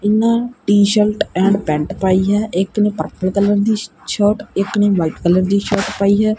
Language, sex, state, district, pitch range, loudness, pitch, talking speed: Punjabi, male, Punjab, Kapurthala, 190-210 Hz, -16 LUFS, 200 Hz, 190 wpm